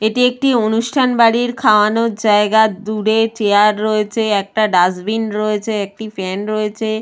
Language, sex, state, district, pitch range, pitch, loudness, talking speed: Bengali, female, West Bengal, Purulia, 210-225 Hz, 215 Hz, -15 LUFS, 100 wpm